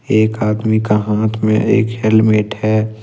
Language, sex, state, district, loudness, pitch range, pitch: Hindi, male, Jharkhand, Ranchi, -15 LUFS, 105-110 Hz, 110 Hz